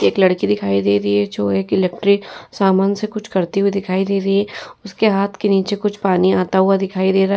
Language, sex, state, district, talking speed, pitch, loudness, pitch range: Hindi, female, Uttar Pradesh, Jyotiba Phule Nagar, 245 wpm, 195 Hz, -17 LUFS, 185-200 Hz